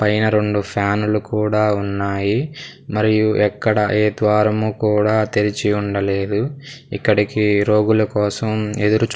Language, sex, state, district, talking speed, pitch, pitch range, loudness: Telugu, male, Andhra Pradesh, Sri Satya Sai, 110 wpm, 105 Hz, 105-110 Hz, -18 LUFS